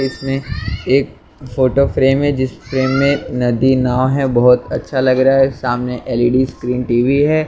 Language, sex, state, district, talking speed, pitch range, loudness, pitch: Hindi, male, Maharashtra, Mumbai Suburban, 170 wpm, 125-135 Hz, -15 LUFS, 130 Hz